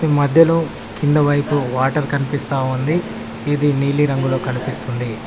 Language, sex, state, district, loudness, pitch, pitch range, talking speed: Telugu, male, Telangana, Mahabubabad, -18 LUFS, 140 Hz, 130-145 Hz, 115 wpm